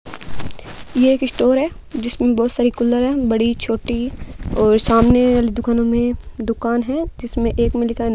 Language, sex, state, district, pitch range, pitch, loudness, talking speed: Hindi, female, Rajasthan, Bikaner, 235-250 Hz, 240 Hz, -18 LUFS, 175 wpm